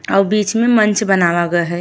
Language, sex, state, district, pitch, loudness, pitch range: Bhojpuri, female, Uttar Pradesh, Ghazipur, 195 Hz, -14 LUFS, 175-215 Hz